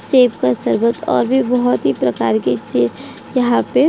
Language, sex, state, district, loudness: Hindi, female, Uttar Pradesh, Jyotiba Phule Nagar, -16 LUFS